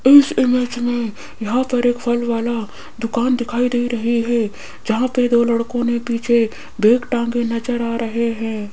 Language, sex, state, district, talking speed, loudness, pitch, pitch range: Hindi, female, Rajasthan, Jaipur, 165 wpm, -18 LUFS, 235 Hz, 230-245 Hz